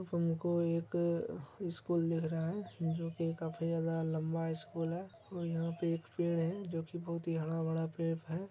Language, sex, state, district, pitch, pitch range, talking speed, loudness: Hindi, male, Bihar, Araria, 165 Hz, 165-170 Hz, 190 wpm, -37 LUFS